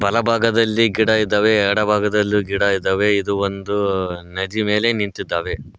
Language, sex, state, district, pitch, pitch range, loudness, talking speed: Kannada, male, Karnataka, Koppal, 105 Hz, 100-110 Hz, -18 LUFS, 115 wpm